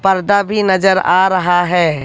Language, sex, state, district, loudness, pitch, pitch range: Hindi, female, Haryana, Jhajjar, -13 LUFS, 190 Hz, 175-195 Hz